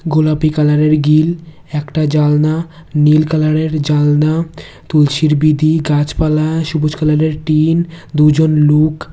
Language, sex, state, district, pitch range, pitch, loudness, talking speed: Bengali, male, Tripura, West Tripura, 150-155 Hz, 155 Hz, -13 LUFS, 105 wpm